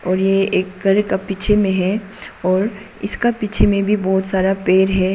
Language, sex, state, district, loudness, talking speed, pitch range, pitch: Hindi, female, Arunachal Pradesh, Papum Pare, -17 LUFS, 200 wpm, 190-205 Hz, 195 Hz